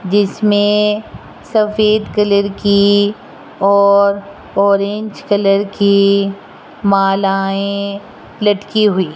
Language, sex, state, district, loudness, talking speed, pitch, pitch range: Hindi, female, Rajasthan, Jaipur, -14 LUFS, 80 wpm, 200 Hz, 200-210 Hz